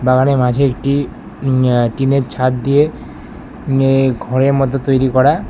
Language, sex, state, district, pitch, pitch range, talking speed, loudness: Bengali, male, West Bengal, Alipurduar, 135 Hz, 130-135 Hz, 130 wpm, -14 LUFS